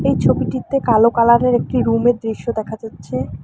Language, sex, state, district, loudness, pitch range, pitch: Bengali, female, West Bengal, Alipurduar, -17 LUFS, 220-240 Hz, 230 Hz